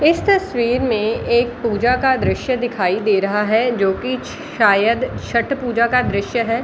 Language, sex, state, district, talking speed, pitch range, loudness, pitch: Hindi, female, Bihar, Jahanabad, 180 wpm, 215-255 Hz, -17 LUFS, 235 Hz